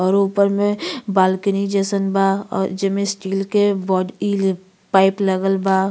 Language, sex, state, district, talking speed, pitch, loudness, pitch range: Bhojpuri, female, Uttar Pradesh, Gorakhpur, 150 wpm, 195 Hz, -19 LUFS, 190-200 Hz